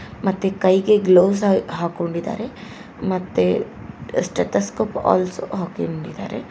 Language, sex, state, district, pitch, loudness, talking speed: Kannada, female, Karnataka, Koppal, 180 Hz, -20 LUFS, 85 wpm